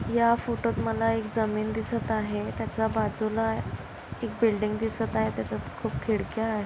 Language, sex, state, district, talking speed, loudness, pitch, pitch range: Marathi, female, Maharashtra, Dhule, 155 wpm, -28 LUFS, 220 Hz, 205-225 Hz